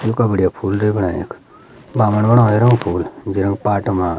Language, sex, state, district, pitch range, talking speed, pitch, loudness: Garhwali, male, Uttarakhand, Uttarkashi, 95-110 Hz, 185 wpm, 105 Hz, -16 LUFS